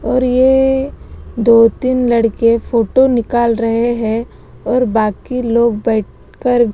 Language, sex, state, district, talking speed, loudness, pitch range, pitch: Hindi, female, Bihar, West Champaran, 105 wpm, -14 LUFS, 230-250 Hz, 235 Hz